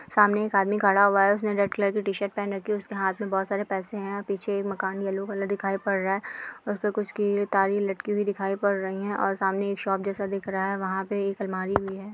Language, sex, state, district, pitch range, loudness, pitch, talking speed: Bhojpuri, female, Bihar, Saran, 195-205 Hz, -26 LUFS, 200 Hz, 275 wpm